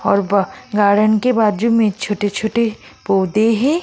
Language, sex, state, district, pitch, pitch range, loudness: Hindi, female, Uttar Pradesh, Jyotiba Phule Nagar, 215 Hz, 205-230 Hz, -16 LUFS